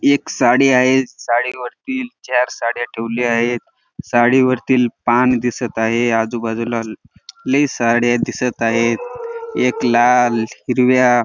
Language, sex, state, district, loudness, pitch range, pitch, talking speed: Marathi, male, Maharashtra, Dhule, -16 LUFS, 120-130 Hz, 120 Hz, 125 wpm